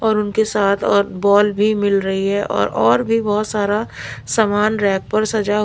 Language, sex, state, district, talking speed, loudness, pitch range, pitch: Hindi, female, Bihar, Patna, 190 wpm, -17 LUFS, 200-215 Hz, 205 Hz